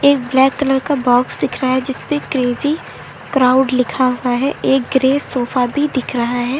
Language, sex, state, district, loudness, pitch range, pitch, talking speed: Hindi, female, Uttar Pradesh, Lucknow, -16 LUFS, 250-275 Hz, 265 Hz, 200 wpm